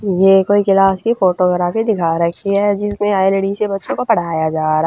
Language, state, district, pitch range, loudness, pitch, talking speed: Haryanvi, Haryana, Rohtak, 175-205 Hz, -15 LUFS, 195 Hz, 210 wpm